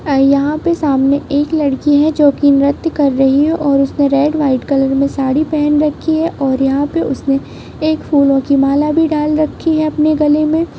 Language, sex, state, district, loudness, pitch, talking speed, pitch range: Hindi, female, Bihar, Jahanabad, -13 LUFS, 290 Hz, 210 wpm, 275-310 Hz